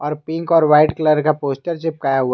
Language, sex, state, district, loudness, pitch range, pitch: Hindi, male, Jharkhand, Garhwa, -17 LUFS, 145-160 Hz, 155 Hz